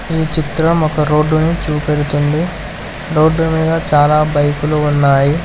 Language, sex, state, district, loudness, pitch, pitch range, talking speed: Telugu, male, Telangana, Hyderabad, -14 LUFS, 155 Hz, 150-160 Hz, 110 wpm